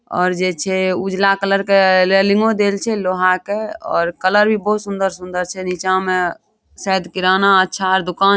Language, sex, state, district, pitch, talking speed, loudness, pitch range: Maithili, female, Bihar, Madhepura, 190 Hz, 170 wpm, -16 LUFS, 185-200 Hz